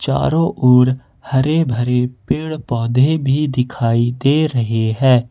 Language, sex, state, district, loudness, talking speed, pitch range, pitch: Hindi, male, Jharkhand, Ranchi, -16 LUFS, 125 wpm, 120-145 Hz, 125 Hz